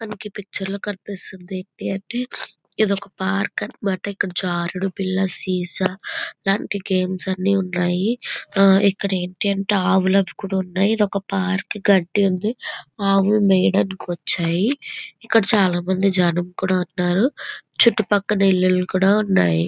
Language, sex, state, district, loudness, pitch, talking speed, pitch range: Telugu, female, Andhra Pradesh, Visakhapatnam, -20 LUFS, 195 Hz, 115 wpm, 185-205 Hz